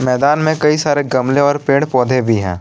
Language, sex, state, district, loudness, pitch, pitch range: Hindi, male, Jharkhand, Palamu, -14 LUFS, 140 Hz, 125-145 Hz